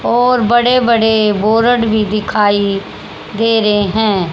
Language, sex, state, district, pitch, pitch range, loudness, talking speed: Hindi, female, Haryana, Charkhi Dadri, 220 Hz, 205-235 Hz, -12 LUFS, 125 wpm